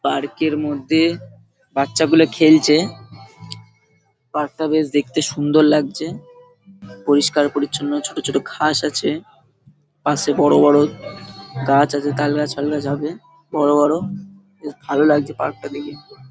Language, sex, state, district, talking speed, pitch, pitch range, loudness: Bengali, male, West Bengal, Paschim Medinipur, 120 wpm, 150 Hz, 145-155 Hz, -18 LUFS